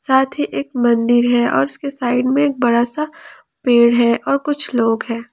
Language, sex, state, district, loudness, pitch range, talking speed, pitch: Hindi, female, Jharkhand, Ranchi, -16 LUFS, 235-280 Hz, 205 wpm, 250 Hz